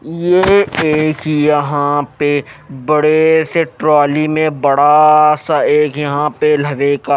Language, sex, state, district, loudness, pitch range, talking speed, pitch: Hindi, male, Odisha, Nuapada, -13 LUFS, 145-155 Hz, 125 wpm, 150 Hz